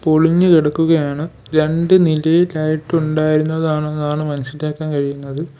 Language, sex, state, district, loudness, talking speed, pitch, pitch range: Malayalam, male, Kerala, Kollam, -16 LUFS, 75 wpm, 155 Hz, 150-160 Hz